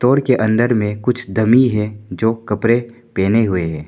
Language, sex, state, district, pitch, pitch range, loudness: Hindi, male, Arunachal Pradesh, Papum Pare, 110 Hz, 105-120 Hz, -16 LUFS